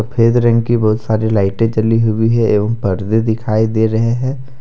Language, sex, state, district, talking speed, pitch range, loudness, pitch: Hindi, male, Jharkhand, Deoghar, 195 wpm, 110-115 Hz, -14 LUFS, 110 Hz